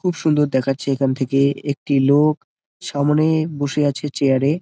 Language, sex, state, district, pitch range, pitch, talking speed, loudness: Bengali, male, West Bengal, Jalpaiguri, 135-150 Hz, 145 Hz, 155 wpm, -19 LUFS